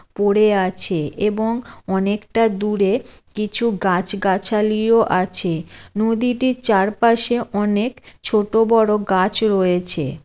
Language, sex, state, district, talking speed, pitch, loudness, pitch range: Bengali, female, West Bengal, Jalpaiguri, 100 wpm, 210 Hz, -18 LUFS, 190-225 Hz